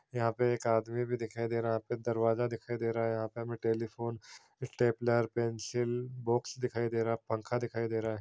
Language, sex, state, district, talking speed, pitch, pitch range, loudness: Hindi, male, Bihar, Supaul, 235 wpm, 115 Hz, 115-120 Hz, -34 LUFS